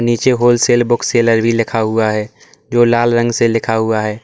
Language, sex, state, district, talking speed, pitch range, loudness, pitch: Hindi, male, Uttar Pradesh, Lalitpur, 210 wpm, 110-120 Hz, -14 LUFS, 115 Hz